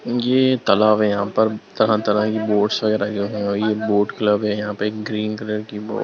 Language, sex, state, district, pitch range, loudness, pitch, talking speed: Hindi, male, Bihar, Lakhisarai, 105-110 Hz, -20 LUFS, 105 Hz, 210 wpm